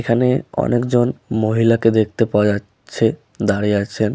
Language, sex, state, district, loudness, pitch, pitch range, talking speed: Bengali, male, West Bengal, Malda, -18 LUFS, 110 Hz, 105-115 Hz, 115 wpm